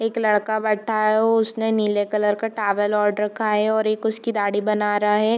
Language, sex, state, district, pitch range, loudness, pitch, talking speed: Hindi, female, Bihar, Gopalganj, 210-220 Hz, -21 LUFS, 215 Hz, 210 wpm